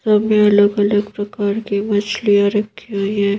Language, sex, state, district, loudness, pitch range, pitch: Hindi, female, Madhya Pradesh, Bhopal, -16 LUFS, 205-210 Hz, 205 Hz